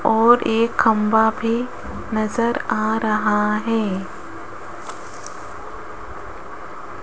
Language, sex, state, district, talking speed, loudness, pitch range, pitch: Hindi, female, Rajasthan, Jaipur, 70 wpm, -19 LUFS, 215-230 Hz, 220 Hz